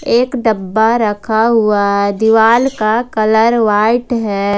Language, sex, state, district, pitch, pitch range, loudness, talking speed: Hindi, female, Jharkhand, Ranchi, 220 Hz, 210-235 Hz, -13 LUFS, 120 wpm